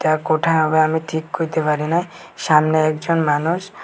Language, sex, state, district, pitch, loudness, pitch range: Bengali, male, Tripura, West Tripura, 155 Hz, -18 LUFS, 155-165 Hz